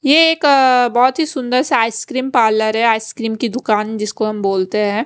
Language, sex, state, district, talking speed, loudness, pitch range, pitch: Hindi, female, Haryana, Rohtak, 200 wpm, -15 LUFS, 215-260 Hz, 230 Hz